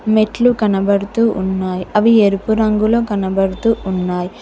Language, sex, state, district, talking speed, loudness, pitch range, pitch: Telugu, female, Telangana, Hyderabad, 110 wpm, -15 LUFS, 190-220 Hz, 205 Hz